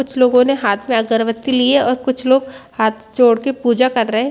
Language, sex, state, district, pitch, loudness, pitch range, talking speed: Hindi, female, Chhattisgarh, Bastar, 250 Hz, -15 LUFS, 230-265 Hz, 250 wpm